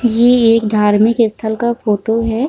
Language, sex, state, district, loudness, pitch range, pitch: Hindi, female, Bihar, Supaul, -13 LUFS, 220-235 Hz, 225 Hz